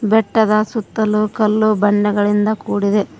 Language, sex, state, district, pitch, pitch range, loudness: Kannada, female, Karnataka, Koppal, 215 Hz, 205-215 Hz, -16 LUFS